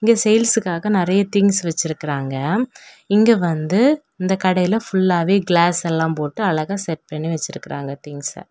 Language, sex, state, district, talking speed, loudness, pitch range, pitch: Tamil, female, Tamil Nadu, Kanyakumari, 135 wpm, -19 LUFS, 160-205 Hz, 180 Hz